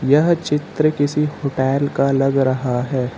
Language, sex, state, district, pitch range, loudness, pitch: Hindi, male, Uttar Pradesh, Lucknow, 135-150 Hz, -18 LUFS, 140 Hz